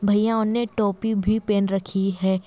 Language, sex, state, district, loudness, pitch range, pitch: Hindi, female, Bihar, Kishanganj, -22 LUFS, 195-220 Hz, 205 Hz